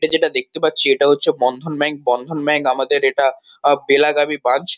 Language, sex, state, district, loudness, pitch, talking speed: Bengali, male, West Bengal, Kolkata, -15 LUFS, 150 Hz, 190 wpm